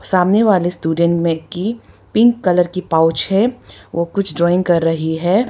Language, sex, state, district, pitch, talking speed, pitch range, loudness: Hindi, female, Arunachal Pradesh, Papum Pare, 180 Hz, 175 wpm, 170-200 Hz, -16 LUFS